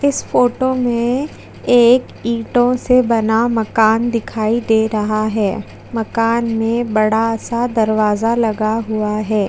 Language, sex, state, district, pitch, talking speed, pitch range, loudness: Hindi, female, Chhattisgarh, Jashpur, 225 Hz, 125 wpm, 220-240 Hz, -16 LUFS